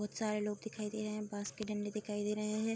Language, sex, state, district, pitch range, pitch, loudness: Hindi, female, Bihar, Darbhanga, 210-215 Hz, 210 Hz, -39 LUFS